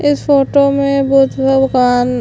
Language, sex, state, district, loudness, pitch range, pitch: Hindi, female, Chhattisgarh, Sukma, -12 LUFS, 265-280 Hz, 270 Hz